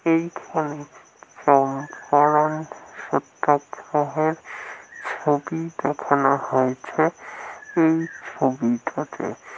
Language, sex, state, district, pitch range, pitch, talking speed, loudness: Bengali, male, West Bengal, North 24 Parganas, 140-160 Hz, 145 Hz, 55 wpm, -23 LUFS